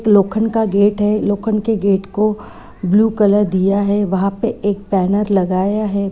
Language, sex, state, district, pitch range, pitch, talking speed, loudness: Hindi, female, Uttar Pradesh, Muzaffarnagar, 195-215 Hz, 205 Hz, 175 wpm, -16 LUFS